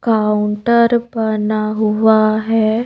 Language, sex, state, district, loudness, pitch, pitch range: Hindi, female, Madhya Pradesh, Bhopal, -15 LUFS, 220 Hz, 215-225 Hz